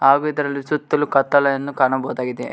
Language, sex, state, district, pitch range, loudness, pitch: Kannada, male, Karnataka, Koppal, 135-145 Hz, -19 LUFS, 140 Hz